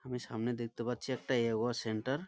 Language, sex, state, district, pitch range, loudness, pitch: Bengali, male, West Bengal, Malda, 115-130 Hz, -36 LUFS, 120 Hz